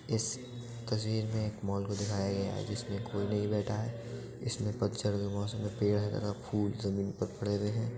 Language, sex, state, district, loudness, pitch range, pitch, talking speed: Hindi, male, Uttar Pradesh, Budaun, -35 LUFS, 100-115 Hz, 105 Hz, 205 wpm